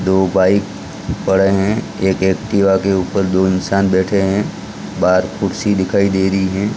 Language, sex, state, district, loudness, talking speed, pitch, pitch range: Hindi, male, Gujarat, Gandhinagar, -16 LUFS, 160 wpm, 95 Hz, 95-100 Hz